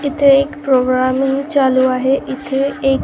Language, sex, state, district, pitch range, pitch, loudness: Marathi, female, Maharashtra, Gondia, 260-275 Hz, 270 Hz, -15 LUFS